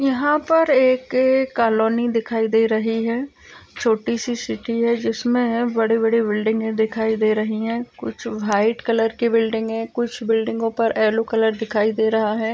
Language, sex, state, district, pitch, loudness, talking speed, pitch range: Hindi, female, Uttar Pradesh, Jyotiba Phule Nagar, 225 Hz, -20 LUFS, 165 wpm, 220-235 Hz